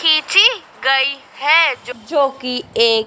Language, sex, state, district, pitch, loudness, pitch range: Hindi, female, Madhya Pradesh, Dhar, 290 Hz, -15 LUFS, 265-330 Hz